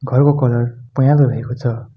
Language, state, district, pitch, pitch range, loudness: Nepali, West Bengal, Darjeeling, 125 Hz, 120-135 Hz, -16 LUFS